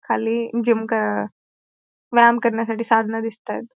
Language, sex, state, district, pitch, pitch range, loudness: Marathi, female, Maharashtra, Pune, 225 Hz, 225-235 Hz, -20 LUFS